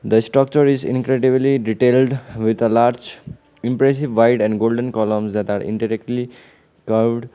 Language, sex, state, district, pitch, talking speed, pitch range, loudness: English, male, Sikkim, Gangtok, 120 Hz, 140 wpm, 110-130 Hz, -18 LUFS